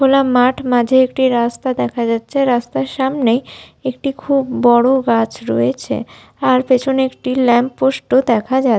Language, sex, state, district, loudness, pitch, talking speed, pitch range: Bengali, female, West Bengal, Jhargram, -15 LUFS, 255 Hz, 155 wpm, 240-265 Hz